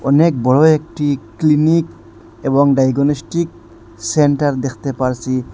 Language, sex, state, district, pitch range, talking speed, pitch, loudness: Bengali, male, Assam, Hailakandi, 130-150 Hz, 100 wpm, 140 Hz, -15 LUFS